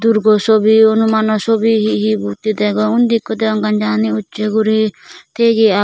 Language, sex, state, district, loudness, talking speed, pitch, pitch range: Chakma, female, Tripura, Dhalai, -14 LUFS, 165 wpm, 215 Hz, 210-220 Hz